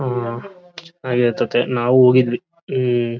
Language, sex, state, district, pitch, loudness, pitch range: Kannada, male, Karnataka, Bellary, 125 Hz, -18 LUFS, 120-135 Hz